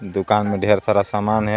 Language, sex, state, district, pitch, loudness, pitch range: Hindi, male, Jharkhand, Garhwa, 105 Hz, -19 LUFS, 100-105 Hz